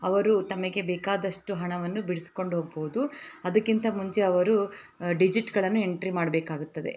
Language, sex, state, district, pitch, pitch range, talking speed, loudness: Kannada, female, Karnataka, Raichur, 190 Hz, 175-210 Hz, 110 wpm, -28 LUFS